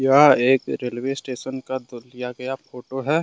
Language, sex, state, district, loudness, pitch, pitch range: Hindi, male, Jharkhand, Deoghar, -22 LUFS, 130 Hz, 125-135 Hz